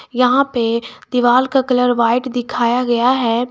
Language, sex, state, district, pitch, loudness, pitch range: Hindi, female, Jharkhand, Garhwa, 245 Hz, -16 LUFS, 235-255 Hz